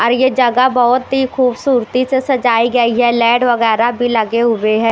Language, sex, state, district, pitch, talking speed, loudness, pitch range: Hindi, female, Bihar, West Champaran, 245 Hz, 195 wpm, -13 LUFS, 235-255 Hz